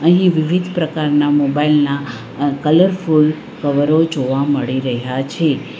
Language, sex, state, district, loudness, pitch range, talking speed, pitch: Gujarati, female, Gujarat, Valsad, -16 LUFS, 140-160 Hz, 115 wpm, 150 Hz